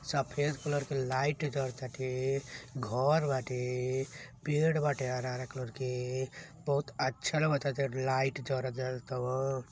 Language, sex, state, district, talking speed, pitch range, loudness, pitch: Bhojpuri, male, Uttar Pradesh, Deoria, 130 wpm, 130-145 Hz, -34 LUFS, 130 Hz